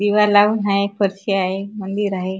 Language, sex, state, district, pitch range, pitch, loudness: Marathi, female, Maharashtra, Chandrapur, 195-205 Hz, 200 Hz, -18 LUFS